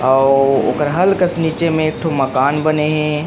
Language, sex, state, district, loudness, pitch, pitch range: Chhattisgarhi, male, Chhattisgarh, Rajnandgaon, -15 LUFS, 150 Hz, 135-160 Hz